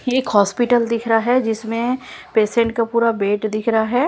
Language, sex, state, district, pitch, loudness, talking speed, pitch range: Hindi, female, Punjab, Kapurthala, 230 Hz, -18 LUFS, 205 wpm, 220-245 Hz